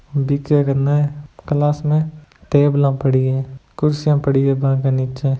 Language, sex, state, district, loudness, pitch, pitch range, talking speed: Hindi, male, Rajasthan, Nagaur, -18 LUFS, 140 Hz, 135-145 Hz, 145 wpm